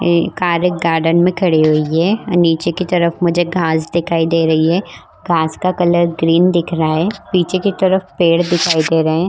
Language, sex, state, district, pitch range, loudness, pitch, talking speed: Hindi, female, Maharashtra, Chandrapur, 165-180 Hz, -14 LUFS, 170 Hz, 205 wpm